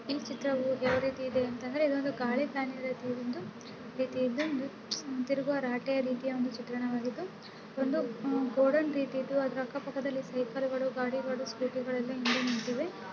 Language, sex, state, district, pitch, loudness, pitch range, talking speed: Kannada, female, Karnataka, Bellary, 260 Hz, -33 LUFS, 250-270 Hz, 140 wpm